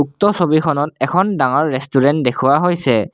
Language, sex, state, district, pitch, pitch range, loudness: Assamese, male, Assam, Kamrup Metropolitan, 145 Hz, 135-175 Hz, -15 LUFS